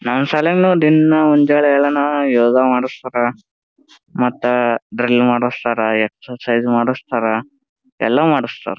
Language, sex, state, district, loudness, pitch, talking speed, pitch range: Kannada, male, Karnataka, Gulbarga, -15 LUFS, 125 Hz, 95 wpm, 120-150 Hz